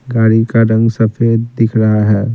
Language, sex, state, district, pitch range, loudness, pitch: Hindi, male, Bihar, Patna, 110-115 Hz, -12 LUFS, 115 Hz